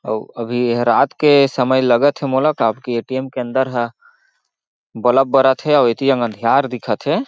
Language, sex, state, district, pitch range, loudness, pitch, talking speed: Chhattisgarhi, male, Chhattisgarh, Jashpur, 120-135 Hz, -16 LUFS, 130 Hz, 190 wpm